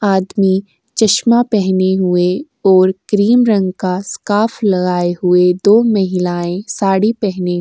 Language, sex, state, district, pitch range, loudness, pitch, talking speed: Hindi, female, Uttar Pradesh, Jyotiba Phule Nagar, 180-215 Hz, -14 LUFS, 190 Hz, 125 wpm